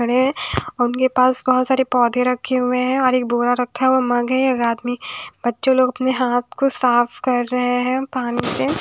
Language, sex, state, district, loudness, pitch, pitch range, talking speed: Hindi, female, Odisha, Nuapada, -18 LUFS, 250 Hz, 245-260 Hz, 185 wpm